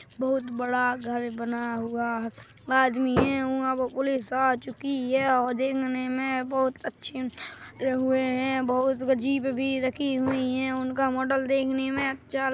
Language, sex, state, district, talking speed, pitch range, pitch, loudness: Hindi, female, Chhattisgarh, Korba, 155 wpm, 255-265 Hz, 260 Hz, -27 LUFS